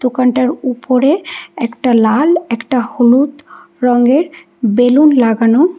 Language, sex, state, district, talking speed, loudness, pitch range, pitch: Bengali, female, Karnataka, Bangalore, 95 wpm, -12 LUFS, 240-290 Hz, 255 Hz